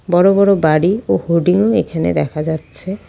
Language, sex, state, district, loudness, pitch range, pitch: Bengali, female, West Bengal, Cooch Behar, -15 LUFS, 160-195 Hz, 180 Hz